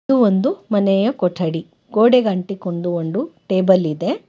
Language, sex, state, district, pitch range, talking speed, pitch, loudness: Kannada, female, Karnataka, Bangalore, 180-230 Hz, 125 wpm, 195 Hz, -18 LUFS